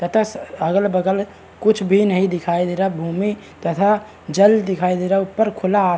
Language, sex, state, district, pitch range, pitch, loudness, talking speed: Hindi, male, Bihar, Araria, 180-205 Hz, 195 Hz, -19 LUFS, 220 wpm